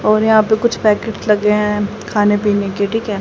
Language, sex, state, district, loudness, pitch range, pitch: Hindi, female, Haryana, Jhajjar, -15 LUFS, 205-220 Hz, 210 Hz